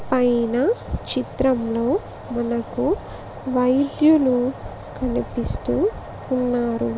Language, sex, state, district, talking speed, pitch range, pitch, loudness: Telugu, female, Andhra Pradesh, Visakhapatnam, 50 wpm, 235-265 Hz, 250 Hz, -22 LUFS